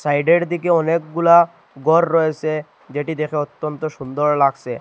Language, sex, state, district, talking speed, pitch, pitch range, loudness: Bengali, male, Assam, Hailakandi, 135 wpm, 155 Hz, 145-170 Hz, -18 LUFS